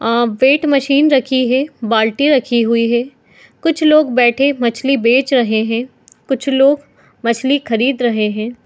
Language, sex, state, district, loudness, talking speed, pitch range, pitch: Hindi, female, Bihar, Madhepura, -14 LUFS, 150 wpm, 235-275 Hz, 255 Hz